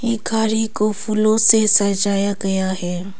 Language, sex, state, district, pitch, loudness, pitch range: Hindi, female, Arunachal Pradesh, Papum Pare, 210 Hz, -17 LUFS, 195-220 Hz